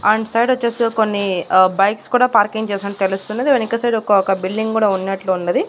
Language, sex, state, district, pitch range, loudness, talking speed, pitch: Telugu, female, Andhra Pradesh, Annamaya, 195-230 Hz, -17 LUFS, 170 wpm, 210 Hz